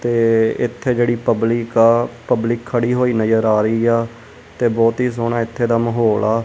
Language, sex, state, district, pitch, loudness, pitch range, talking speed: Punjabi, male, Punjab, Kapurthala, 115 Hz, -17 LUFS, 115-120 Hz, 185 wpm